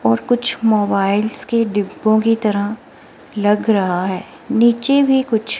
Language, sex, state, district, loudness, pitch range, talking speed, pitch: Hindi, female, Himachal Pradesh, Shimla, -16 LUFS, 205-235 Hz, 140 wpm, 220 Hz